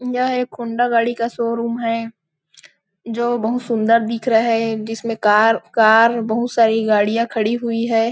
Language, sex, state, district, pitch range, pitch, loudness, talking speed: Hindi, female, Chhattisgarh, Bilaspur, 225-235 Hz, 230 Hz, -17 LUFS, 160 wpm